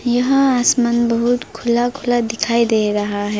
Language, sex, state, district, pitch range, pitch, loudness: Hindi, female, West Bengal, Alipurduar, 225-245 Hz, 235 Hz, -17 LUFS